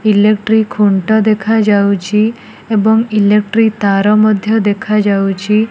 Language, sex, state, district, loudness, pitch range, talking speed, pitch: Odia, female, Odisha, Nuapada, -12 LUFS, 205-220 Hz, 85 wpm, 215 Hz